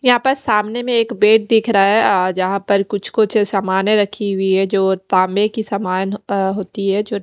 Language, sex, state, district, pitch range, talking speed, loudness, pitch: Hindi, female, Odisha, Khordha, 195-220 Hz, 200 wpm, -16 LUFS, 200 Hz